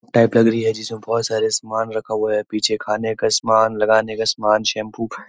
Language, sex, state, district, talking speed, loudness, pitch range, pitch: Hindi, male, Uttarakhand, Uttarkashi, 205 wpm, -19 LUFS, 110-115 Hz, 110 Hz